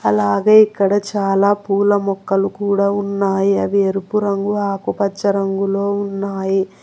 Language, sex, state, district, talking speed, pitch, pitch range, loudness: Telugu, male, Telangana, Hyderabad, 115 wpm, 200 Hz, 195-200 Hz, -17 LUFS